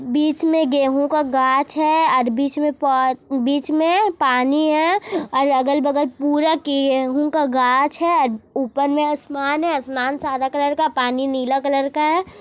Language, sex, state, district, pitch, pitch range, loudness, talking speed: Hindi, female, Bihar, Kishanganj, 285 Hz, 265-305 Hz, -19 LUFS, 170 wpm